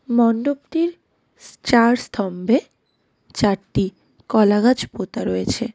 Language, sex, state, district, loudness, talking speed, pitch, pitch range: Bengali, female, West Bengal, Darjeeling, -20 LUFS, 75 wpm, 230 Hz, 200-250 Hz